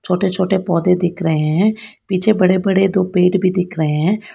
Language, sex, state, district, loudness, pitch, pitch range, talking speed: Hindi, female, Karnataka, Bangalore, -16 LUFS, 185 Hz, 180-195 Hz, 205 wpm